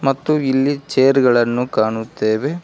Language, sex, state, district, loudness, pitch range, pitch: Kannada, male, Karnataka, Koppal, -17 LUFS, 120-140 Hz, 130 Hz